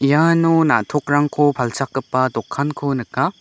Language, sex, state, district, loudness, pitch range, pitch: Garo, male, Meghalaya, West Garo Hills, -18 LUFS, 130-150 Hz, 145 Hz